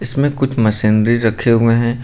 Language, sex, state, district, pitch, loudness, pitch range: Hindi, male, Uttar Pradesh, Lucknow, 115 Hz, -14 LUFS, 110-125 Hz